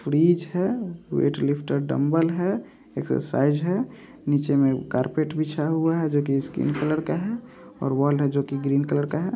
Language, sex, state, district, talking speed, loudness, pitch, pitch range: Hindi, male, Bihar, Samastipur, 185 wpm, -24 LUFS, 150 Hz, 140-170 Hz